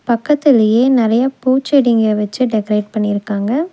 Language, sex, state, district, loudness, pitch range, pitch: Tamil, female, Tamil Nadu, Nilgiris, -14 LUFS, 215-265 Hz, 235 Hz